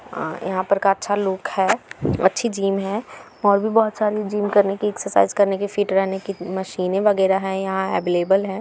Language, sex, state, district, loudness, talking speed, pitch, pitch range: Hindi, female, Bihar, Gaya, -21 LUFS, 200 wpm, 195 Hz, 190-205 Hz